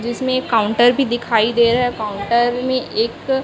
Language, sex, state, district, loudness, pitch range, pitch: Hindi, female, Chhattisgarh, Raipur, -17 LUFS, 230-255 Hz, 240 Hz